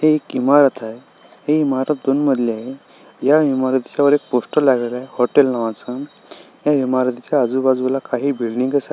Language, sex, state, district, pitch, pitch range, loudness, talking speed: Marathi, male, Maharashtra, Solapur, 130 Hz, 125-145 Hz, -18 LUFS, 140 wpm